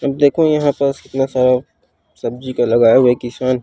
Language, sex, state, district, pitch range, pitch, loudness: Chhattisgarhi, female, Chhattisgarh, Rajnandgaon, 125-140 Hz, 130 Hz, -15 LUFS